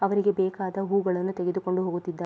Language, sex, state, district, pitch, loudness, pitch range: Kannada, female, Karnataka, Mysore, 190 Hz, -27 LUFS, 180-195 Hz